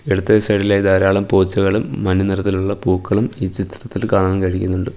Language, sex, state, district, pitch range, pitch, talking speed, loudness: Malayalam, male, Kerala, Kollam, 95-100 Hz, 95 Hz, 145 wpm, -17 LUFS